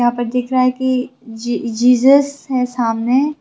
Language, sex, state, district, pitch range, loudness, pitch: Hindi, female, Tripura, West Tripura, 240-260 Hz, -16 LUFS, 250 Hz